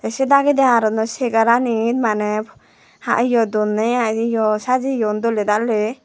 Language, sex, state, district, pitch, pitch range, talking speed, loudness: Chakma, female, Tripura, West Tripura, 225 Hz, 215-245 Hz, 130 wpm, -18 LUFS